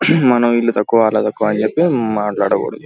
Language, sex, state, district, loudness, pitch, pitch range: Telugu, male, Andhra Pradesh, Guntur, -15 LUFS, 110 Hz, 105-120 Hz